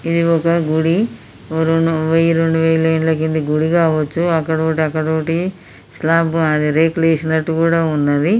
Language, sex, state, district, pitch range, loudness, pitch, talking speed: Telugu, male, Telangana, Nalgonda, 155-165 Hz, -16 LUFS, 160 Hz, 135 wpm